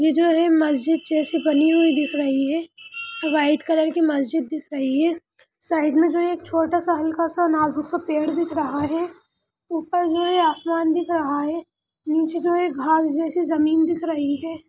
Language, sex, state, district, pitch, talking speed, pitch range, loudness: Hindi, female, Bihar, Lakhisarai, 320 Hz, 190 wpm, 305-335 Hz, -21 LUFS